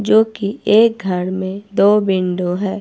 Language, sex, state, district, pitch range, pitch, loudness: Hindi, female, Himachal Pradesh, Shimla, 185-215 Hz, 200 Hz, -16 LUFS